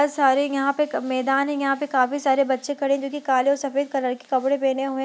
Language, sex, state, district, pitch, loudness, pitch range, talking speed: Hindi, female, Bihar, Gaya, 275 Hz, -22 LUFS, 265-280 Hz, 270 wpm